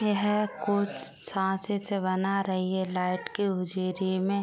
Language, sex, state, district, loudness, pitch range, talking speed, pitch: Hindi, female, Uttar Pradesh, Gorakhpur, -29 LUFS, 185-205 Hz, 150 wpm, 195 Hz